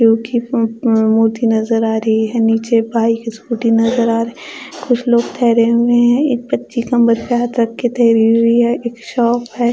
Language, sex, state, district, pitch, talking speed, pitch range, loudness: Hindi, female, Odisha, Khordha, 230 Hz, 155 wpm, 225-240 Hz, -14 LUFS